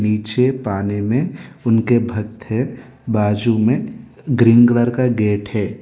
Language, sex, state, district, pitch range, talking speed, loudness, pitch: Hindi, male, Telangana, Hyderabad, 105-125 Hz, 135 wpm, -17 LUFS, 115 Hz